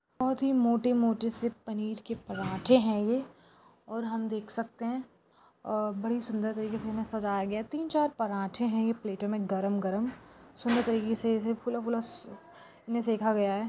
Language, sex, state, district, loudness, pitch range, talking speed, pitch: Hindi, female, Maharashtra, Nagpur, -31 LUFS, 215-235 Hz, 170 wpm, 225 Hz